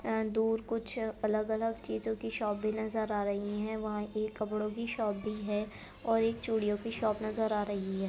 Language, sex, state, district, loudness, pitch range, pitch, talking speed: Hindi, female, Uttar Pradesh, Etah, -34 LUFS, 210-220 Hz, 215 Hz, 210 wpm